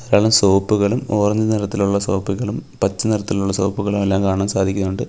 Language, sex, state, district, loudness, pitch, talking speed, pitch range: Malayalam, male, Kerala, Kollam, -18 LUFS, 100 Hz, 105 wpm, 95-105 Hz